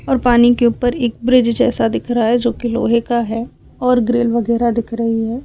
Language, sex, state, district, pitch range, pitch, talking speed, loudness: Hindi, female, Chhattisgarh, Raipur, 235-245 Hz, 240 Hz, 220 wpm, -16 LUFS